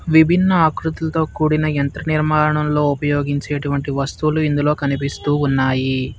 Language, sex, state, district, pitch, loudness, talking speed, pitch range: Telugu, male, Telangana, Hyderabad, 150 Hz, -18 LUFS, 95 wpm, 140-155 Hz